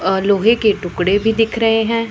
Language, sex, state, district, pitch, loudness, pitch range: Hindi, male, Punjab, Pathankot, 225 Hz, -15 LUFS, 195-225 Hz